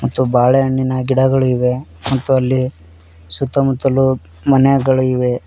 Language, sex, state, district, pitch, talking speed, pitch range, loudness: Kannada, male, Karnataka, Koppal, 130 Hz, 100 wpm, 125-135 Hz, -15 LUFS